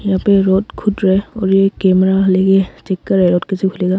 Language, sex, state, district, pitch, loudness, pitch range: Hindi, male, Arunachal Pradesh, Longding, 190 Hz, -14 LUFS, 190-195 Hz